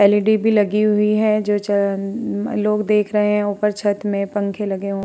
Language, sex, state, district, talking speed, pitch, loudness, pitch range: Hindi, female, Uttar Pradesh, Muzaffarnagar, 215 wpm, 210 Hz, -18 LUFS, 200-210 Hz